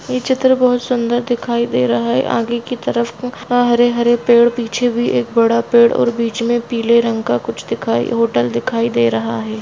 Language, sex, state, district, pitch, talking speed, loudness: Hindi, female, Bihar, Bhagalpur, 235 Hz, 205 wpm, -15 LUFS